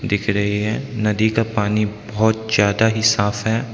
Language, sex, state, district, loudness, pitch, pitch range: Hindi, male, Arunachal Pradesh, Lower Dibang Valley, -19 LUFS, 110 Hz, 105-110 Hz